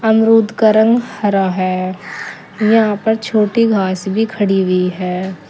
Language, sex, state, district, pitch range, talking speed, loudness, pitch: Hindi, female, Uttar Pradesh, Saharanpur, 185-220 Hz, 140 wpm, -14 LUFS, 205 Hz